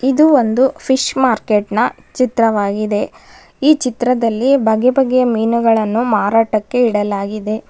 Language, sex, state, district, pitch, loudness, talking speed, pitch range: Kannada, female, Karnataka, Bangalore, 230 Hz, -15 LUFS, 95 wpm, 215-260 Hz